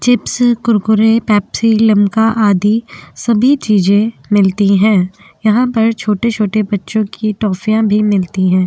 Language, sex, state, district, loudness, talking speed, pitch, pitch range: Hindi, female, Uttar Pradesh, Jyotiba Phule Nagar, -13 LUFS, 125 wpm, 215 Hz, 205-225 Hz